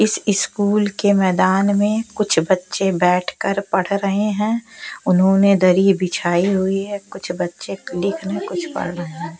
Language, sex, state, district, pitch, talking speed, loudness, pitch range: Hindi, female, Haryana, Jhajjar, 195 Hz, 145 wpm, -18 LUFS, 185-205 Hz